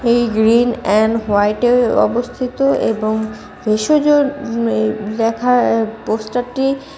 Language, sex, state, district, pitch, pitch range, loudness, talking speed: Bengali, female, West Bengal, Cooch Behar, 230 Hz, 215-245 Hz, -16 LUFS, 110 wpm